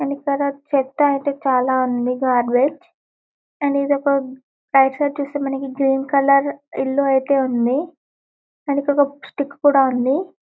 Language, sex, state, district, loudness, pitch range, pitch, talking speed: Telugu, female, Telangana, Karimnagar, -19 LUFS, 265-285 Hz, 275 Hz, 120 wpm